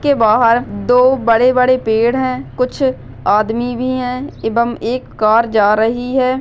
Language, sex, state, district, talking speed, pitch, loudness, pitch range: Hindi, female, Maharashtra, Nagpur, 160 wpm, 245 Hz, -14 LUFS, 225-255 Hz